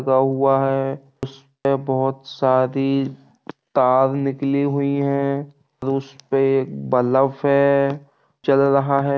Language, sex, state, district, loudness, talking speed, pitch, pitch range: Bundeli, male, Uttar Pradesh, Jalaun, -20 LUFS, 105 wpm, 135 Hz, 135-140 Hz